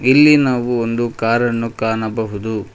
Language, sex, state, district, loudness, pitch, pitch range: Kannada, male, Karnataka, Koppal, -16 LUFS, 115 Hz, 110-120 Hz